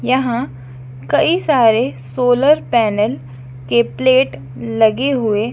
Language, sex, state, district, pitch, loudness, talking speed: Hindi, female, Madhya Pradesh, Dhar, 210 Hz, -15 LUFS, 100 wpm